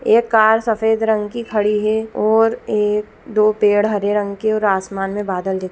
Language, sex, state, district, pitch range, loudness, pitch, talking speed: Hindi, female, Chhattisgarh, Raigarh, 205-220 Hz, -17 LUFS, 215 Hz, 210 wpm